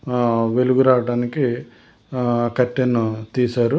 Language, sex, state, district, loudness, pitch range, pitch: Telugu, male, Telangana, Hyderabad, -19 LUFS, 115-125 Hz, 120 Hz